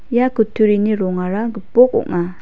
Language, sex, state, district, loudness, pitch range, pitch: Garo, female, Meghalaya, West Garo Hills, -16 LUFS, 185-235 Hz, 215 Hz